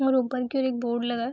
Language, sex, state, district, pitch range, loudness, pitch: Hindi, female, Bihar, Saharsa, 240-260 Hz, -27 LUFS, 250 Hz